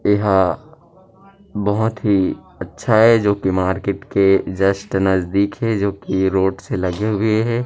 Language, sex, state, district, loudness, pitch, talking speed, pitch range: Chhattisgarhi, male, Chhattisgarh, Rajnandgaon, -18 LUFS, 100 Hz, 150 wpm, 95-110 Hz